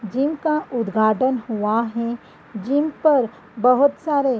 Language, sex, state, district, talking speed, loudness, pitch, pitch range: Hindi, female, Uttar Pradesh, Gorakhpur, 135 wpm, -20 LUFS, 250 Hz, 230-285 Hz